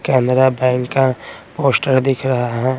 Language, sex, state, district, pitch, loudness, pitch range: Hindi, male, Bihar, Patna, 130 Hz, -16 LUFS, 125-130 Hz